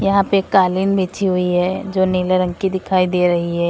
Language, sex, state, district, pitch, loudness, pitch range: Hindi, female, Uttar Pradesh, Lalitpur, 185 Hz, -17 LUFS, 180-195 Hz